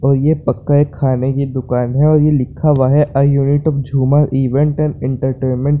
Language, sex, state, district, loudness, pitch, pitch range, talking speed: Hindi, male, Bihar, Saran, -14 LUFS, 140 Hz, 130-145 Hz, 195 wpm